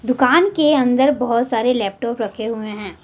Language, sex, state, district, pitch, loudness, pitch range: Hindi, female, Jharkhand, Deoghar, 240 Hz, -17 LUFS, 225-265 Hz